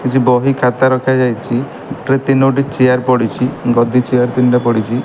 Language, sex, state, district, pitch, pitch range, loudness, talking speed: Odia, male, Odisha, Malkangiri, 125 Hz, 125-130 Hz, -13 LUFS, 155 wpm